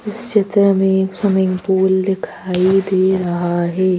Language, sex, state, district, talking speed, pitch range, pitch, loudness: Hindi, female, Madhya Pradesh, Bhopal, 150 wpm, 185-195 Hz, 190 Hz, -16 LUFS